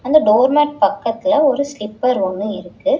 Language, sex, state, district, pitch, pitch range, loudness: Tamil, female, Tamil Nadu, Chennai, 255 Hz, 210-285 Hz, -16 LUFS